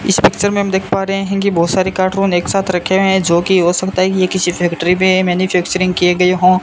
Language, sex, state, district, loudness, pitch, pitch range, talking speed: Hindi, male, Rajasthan, Bikaner, -14 LUFS, 185 Hz, 180-190 Hz, 270 wpm